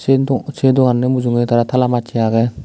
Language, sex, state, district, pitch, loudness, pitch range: Chakma, male, Tripura, Dhalai, 125 Hz, -15 LUFS, 120-130 Hz